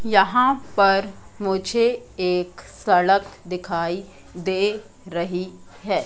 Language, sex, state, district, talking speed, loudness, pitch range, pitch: Hindi, female, Madhya Pradesh, Katni, 90 wpm, -22 LUFS, 180-205 Hz, 190 Hz